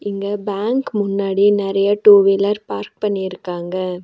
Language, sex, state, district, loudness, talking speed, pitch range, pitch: Tamil, female, Tamil Nadu, Nilgiris, -17 LUFS, 120 wpm, 185-205 Hz, 200 Hz